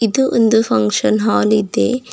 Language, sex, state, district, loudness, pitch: Kannada, female, Karnataka, Bidar, -15 LUFS, 220 Hz